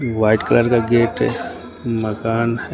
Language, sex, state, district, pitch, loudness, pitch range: Hindi, male, Uttar Pradesh, Lucknow, 115 Hz, -18 LUFS, 110-120 Hz